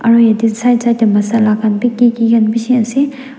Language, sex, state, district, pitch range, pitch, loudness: Nagamese, female, Nagaland, Dimapur, 220-240 Hz, 230 Hz, -12 LUFS